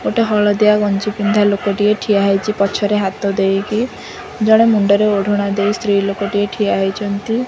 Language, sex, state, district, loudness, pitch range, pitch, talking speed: Odia, female, Odisha, Khordha, -15 LUFS, 200-210 Hz, 205 Hz, 145 wpm